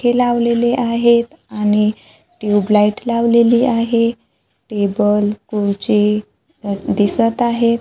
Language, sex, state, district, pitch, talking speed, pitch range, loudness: Marathi, female, Maharashtra, Gondia, 230 Hz, 85 wpm, 210-235 Hz, -16 LUFS